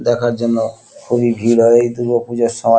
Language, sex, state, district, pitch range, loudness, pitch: Bengali, male, West Bengal, Kolkata, 115-120 Hz, -15 LUFS, 120 Hz